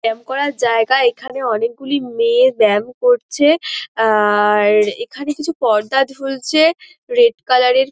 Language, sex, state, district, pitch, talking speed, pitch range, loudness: Bengali, female, West Bengal, Dakshin Dinajpur, 265 Hz, 135 wpm, 225-310 Hz, -15 LUFS